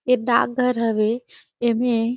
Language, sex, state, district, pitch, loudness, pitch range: Surgujia, female, Chhattisgarh, Sarguja, 240 Hz, -21 LUFS, 230-250 Hz